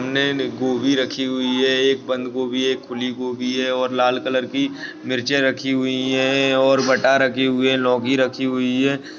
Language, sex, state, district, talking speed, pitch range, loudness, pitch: Hindi, male, Chhattisgarh, Bastar, 195 wpm, 125-135 Hz, -19 LUFS, 130 Hz